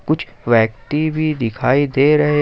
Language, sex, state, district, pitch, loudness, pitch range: Hindi, male, Jharkhand, Ranchi, 140 Hz, -17 LUFS, 115-150 Hz